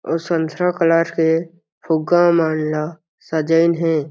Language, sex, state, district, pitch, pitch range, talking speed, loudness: Chhattisgarhi, male, Chhattisgarh, Jashpur, 165 Hz, 160-170 Hz, 130 wpm, -18 LUFS